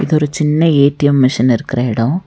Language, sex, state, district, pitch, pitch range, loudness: Tamil, female, Tamil Nadu, Nilgiris, 145 Hz, 125-150 Hz, -13 LUFS